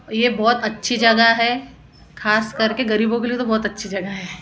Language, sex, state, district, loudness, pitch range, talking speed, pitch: Hindi, female, Maharashtra, Gondia, -18 LUFS, 215-235 Hz, 205 wpm, 220 Hz